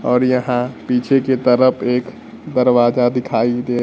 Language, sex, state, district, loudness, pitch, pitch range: Hindi, male, Bihar, Kaimur, -16 LUFS, 125 Hz, 125-130 Hz